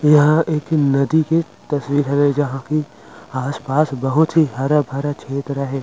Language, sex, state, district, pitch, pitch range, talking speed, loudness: Chhattisgarhi, male, Chhattisgarh, Rajnandgaon, 145 Hz, 135-150 Hz, 185 wpm, -18 LUFS